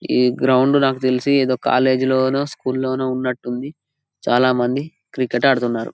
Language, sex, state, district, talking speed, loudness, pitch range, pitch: Telugu, male, Telangana, Karimnagar, 150 wpm, -18 LUFS, 125-135 Hz, 130 Hz